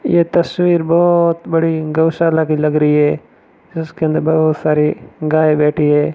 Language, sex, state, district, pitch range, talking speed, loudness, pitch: Hindi, male, Rajasthan, Barmer, 150-165 Hz, 155 wpm, -14 LUFS, 160 Hz